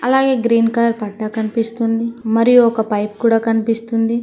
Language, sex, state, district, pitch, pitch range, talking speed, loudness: Telugu, female, Telangana, Mahabubabad, 230 Hz, 225-235 Hz, 140 wpm, -16 LUFS